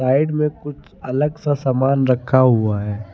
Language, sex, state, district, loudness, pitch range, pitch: Hindi, male, Chandigarh, Chandigarh, -18 LUFS, 125-145 Hz, 130 Hz